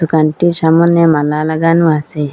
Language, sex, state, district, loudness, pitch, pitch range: Bengali, female, Assam, Hailakandi, -12 LUFS, 160 Hz, 155-165 Hz